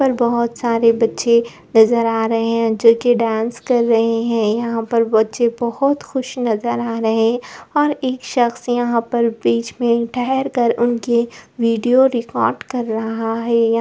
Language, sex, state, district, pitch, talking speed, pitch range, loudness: Hindi, female, Bihar, Gopalganj, 235 Hz, 180 wpm, 230-245 Hz, -17 LUFS